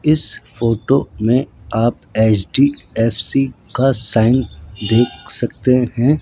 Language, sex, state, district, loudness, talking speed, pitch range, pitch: Hindi, male, Rajasthan, Jaipur, -16 LUFS, 95 wpm, 110-130 Hz, 115 Hz